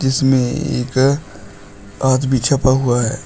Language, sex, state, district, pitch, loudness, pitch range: Hindi, male, Uttar Pradesh, Shamli, 130 Hz, -16 LUFS, 120-135 Hz